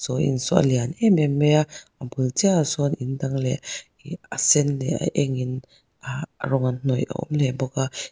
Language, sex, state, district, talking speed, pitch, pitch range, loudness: Mizo, female, Mizoram, Aizawl, 230 wpm, 135 Hz, 130-150 Hz, -23 LUFS